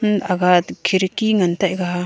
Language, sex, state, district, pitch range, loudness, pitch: Wancho, female, Arunachal Pradesh, Longding, 180-200 Hz, -18 LUFS, 185 Hz